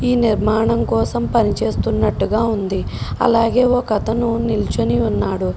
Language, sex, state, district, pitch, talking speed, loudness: Telugu, female, Telangana, Karimnagar, 190 Hz, 120 wpm, -18 LUFS